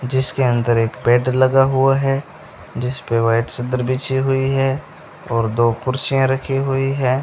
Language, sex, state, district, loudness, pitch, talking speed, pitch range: Hindi, male, Rajasthan, Bikaner, -18 LUFS, 130 Hz, 155 wpm, 120-135 Hz